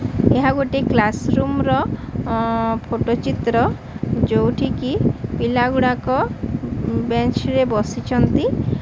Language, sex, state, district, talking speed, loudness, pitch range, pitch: Odia, female, Odisha, Sambalpur, 100 wpm, -19 LUFS, 225-260 Hz, 245 Hz